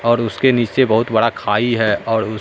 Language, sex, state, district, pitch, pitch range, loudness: Hindi, male, Bihar, Katihar, 115 Hz, 110-120 Hz, -16 LUFS